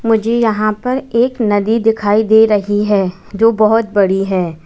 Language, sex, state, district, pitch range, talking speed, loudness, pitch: Hindi, female, Uttar Pradesh, Lalitpur, 205-225 Hz, 170 wpm, -13 LUFS, 215 Hz